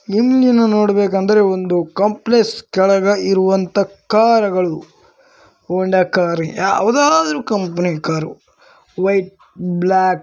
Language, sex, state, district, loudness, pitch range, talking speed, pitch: Kannada, male, Karnataka, Bellary, -15 LUFS, 185-225 Hz, 100 wpm, 195 Hz